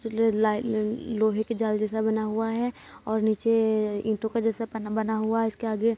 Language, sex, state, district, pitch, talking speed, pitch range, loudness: Hindi, female, Uttar Pradesh, Etah, 220 Hz, 210 wpm, 220-225 Hz, -26 LUFS